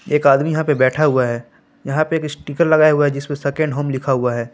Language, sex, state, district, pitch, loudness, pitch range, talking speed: Hindi, male, Jharkhand, Palamu, 145 Hz, -17 LUFS, 130-155 Hz, 265 wpm